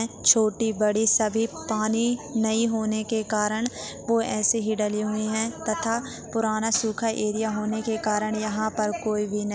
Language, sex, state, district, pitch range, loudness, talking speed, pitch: Hindi, female, Chhattisgarh, Jashpur, 215-225 Hz, -25 LUFS, 165 wpm, 220 Hz